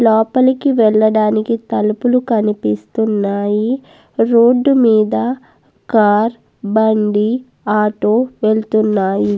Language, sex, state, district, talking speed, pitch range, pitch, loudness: Telugu, female, Andhra Pradesh, Guntur, 65 wpm, 210-235 Hz, 220 Hz, -14 LUFS